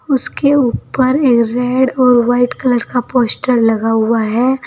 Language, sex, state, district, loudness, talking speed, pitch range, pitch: Hindi, female, Uttar Pradesh, Saharanpur, -13 LUFS, 155 wpm, 235-260 Hz, 245 Hz